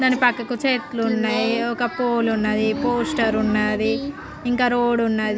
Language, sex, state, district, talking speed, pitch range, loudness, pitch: Telugu, female, Andhra Pradesh, Srikakulam, 125 wpm, 220-245 Hz, -21 LUFS, 235 Hz